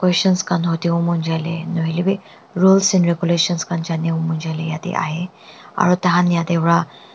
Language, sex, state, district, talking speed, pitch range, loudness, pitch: Nagamese, female, Nagaland, Dimapur, 135 wpm, 165-180 Hz, -18 LUFS, 170 Hz